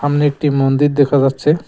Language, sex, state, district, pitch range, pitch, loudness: Bengali, male, West Bengal, Cooch Behar, 140-145 Hz, 145 Hz, -14 LUFS